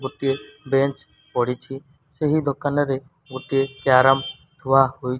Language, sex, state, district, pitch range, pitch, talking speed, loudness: Odia, male, Odisha, Malkangiri, 130-145 Hz, 135 Hz, 115 wpm, -21 LUFS